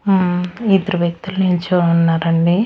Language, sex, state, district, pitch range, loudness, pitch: Telugu, female, Andhra Pradesh, Annamaya, 170-190 Hz, -16 LUFS, 180 Hz